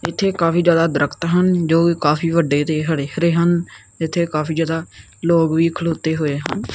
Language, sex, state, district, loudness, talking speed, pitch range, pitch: Punjabi, male, Punjab, Kapurthala, -18 LUFS, 185 wpm, 155-170 Hz, 165 Hz